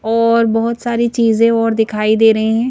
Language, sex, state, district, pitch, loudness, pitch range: Hindi, female, Madhya Pradesh, Bhopal, 225 Hz, -14 LUFS, 225-230 Hz